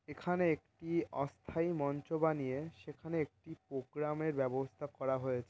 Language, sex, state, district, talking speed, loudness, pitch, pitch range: Bengali, male, West Bengal, North 24 Parganas, 130 wpm, -38 LUFS, 150 Hz, 135-160 Hz